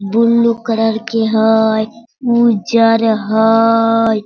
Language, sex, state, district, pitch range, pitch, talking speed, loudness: Hindi, female, Bihar, Sitamarhi, 220-230 Hz, 225 Hz, 85 wpm, -13 LUFS